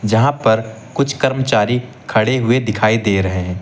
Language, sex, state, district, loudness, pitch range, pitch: Hindi, male, Uttar Pradesh, Lucknow, -16 LUFS, 110-130 Hz, 115 Hz